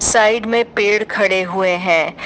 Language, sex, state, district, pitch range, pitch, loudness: Hindi, female, Uttar Pradesh, Shamli, 185-225 Hz, 205 Hz, -15 LUFS